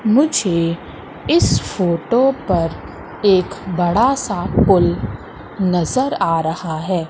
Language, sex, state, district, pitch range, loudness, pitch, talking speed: Hindi, female, Madhya Pradesh, Katni, 170-230 Hz, -17 LUFS, 180 Hz, 100 wpm